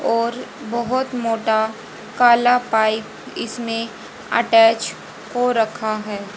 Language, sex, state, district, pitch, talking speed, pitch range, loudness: Hindi, female, Haryana, Jhajjar, 225 Hz, 95 wpm, 220-240 Hz, -19 LUFS